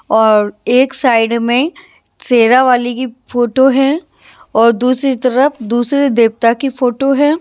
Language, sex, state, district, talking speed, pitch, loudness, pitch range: Hindi, female, Maharashtra, Washim, 135 wpm, 250 Hz, -12 LUFS, 235-270 Hz